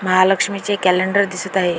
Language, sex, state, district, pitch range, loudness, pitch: Marathi, female, Maharashtra, Dhule, 185-195 Hz, -17 LUFS, 190 Hz